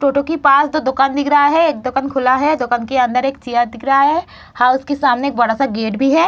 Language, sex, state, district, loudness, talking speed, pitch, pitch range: Hindi, female, Bihar, Saharsa, -15 LUFS, 315 wpm, 275 Hz, 250-285 Hz